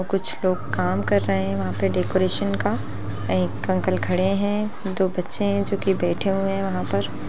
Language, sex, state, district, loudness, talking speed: Hindi, female, Bihar, Lakhisarai, -22 LUFS, 200 wpm